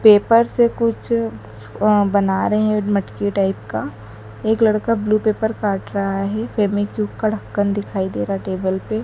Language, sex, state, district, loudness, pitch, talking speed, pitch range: Hindi, female, Madhya Pradesh, Dhar, -19 LUFS, 205 Hz, 170 wpm, 195-220 Hz